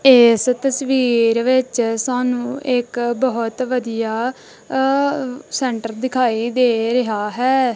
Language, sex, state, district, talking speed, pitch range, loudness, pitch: Punjabi, female, Punjab, Kapurthala, 100 wpm, 235-260 Hz, -18 LUFS, 250 Hz